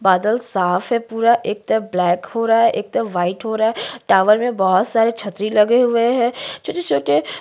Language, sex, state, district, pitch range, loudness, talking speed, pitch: Hindi, female, Uttarakhand, Tehri Garhwal, 190-235 Hz, -17 LUFS, 210 wpm, 220 Hz